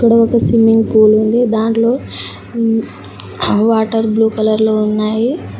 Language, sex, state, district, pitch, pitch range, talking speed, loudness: Telugu, female, Telangana, Mahabubabad, 225 Hz, 220-230 Hz, 105 wpm, -13 LUFS